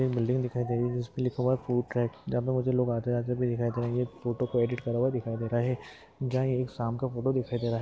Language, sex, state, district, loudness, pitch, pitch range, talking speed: Hindi, male, Rajasthan, Churu, -30 LUFS, 125 Hz, 120-130 Hz, 300 wpm